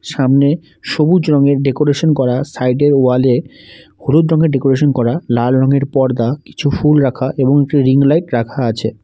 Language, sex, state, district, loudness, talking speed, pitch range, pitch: Bengali, male, West Bengal, Alipurduar, -13 LUFS, 155 wpm, 130-145 Hz, 140 Hz